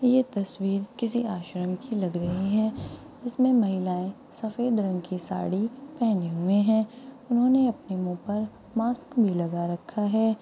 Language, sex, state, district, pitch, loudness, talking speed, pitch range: Hindi, female, Rajasthan, Churu, 215 Hz, -27 LUFS, 150 wpm, 185-240 Hz